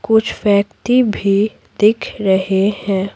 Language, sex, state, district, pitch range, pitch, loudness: Hindi, female, Bihar, Patna, 195-215 Hz, 205 Hz, -16 LUFS